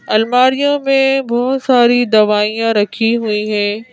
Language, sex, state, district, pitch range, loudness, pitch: Hindi, female, Madhya Pradesh, Bhopal, 215-260 Hz, -13 LUFS, 235 Hz